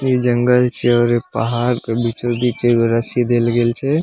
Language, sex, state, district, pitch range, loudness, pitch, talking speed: Maithili, male, Bihar, Samastipur, 120-125 Hz, -16 LUFS, 120 Hz, 195 wpm